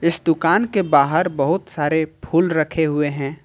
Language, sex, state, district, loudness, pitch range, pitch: Hindi, male, Jharkhand, Ranchi, -19 LUFS, 150-170 Hz, 160 Hz